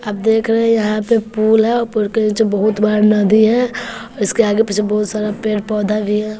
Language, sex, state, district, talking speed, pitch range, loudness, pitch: Hindi, female, Bihar, West Champaran, 245 wpm, 210-225 Hz, -15 LUFS, 215 Hz